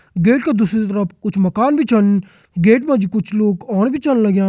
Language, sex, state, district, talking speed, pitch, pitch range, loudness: Kumaoni, male, Uttarakhand, Tehri Garhwal, 225 wpm, 210 Hz, 195-240 Hz, -16 LUFS